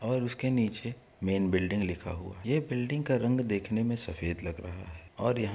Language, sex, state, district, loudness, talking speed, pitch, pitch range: Hindi, male, Uttar Pradesh, Etah, -32 LUFS, 225 wpm, 110 Hz, 90-125 Hz